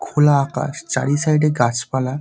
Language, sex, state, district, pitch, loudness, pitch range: Bengali, male, West Bengal, Dakshin Dinajpur, 140 Hz, -18 LUFS, 130-150 Hz